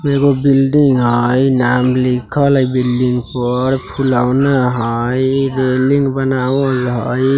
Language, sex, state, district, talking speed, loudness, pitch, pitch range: Bajjika, male, Bihar, Vaishali, 115 wpm, -14 LUFS, 130 Hz, 125-135 Hz